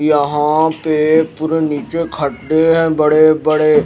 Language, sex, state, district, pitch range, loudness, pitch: Hindi, male, Himachal Pradesh, Shimla, 150-160 Hz, -14 LUFS, 155 Hz